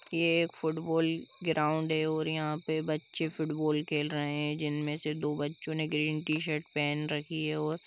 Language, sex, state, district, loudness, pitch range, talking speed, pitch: Hindi, male, Jharkhand, Jamtara, -32 LUFS, 150-160 Hz, 175 wpm, 155 Hz